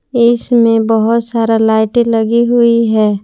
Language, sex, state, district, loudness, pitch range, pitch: Hindi, female, Jharkhand, Palamu, -11 LUFS, 220-235 Hz, 230 Hz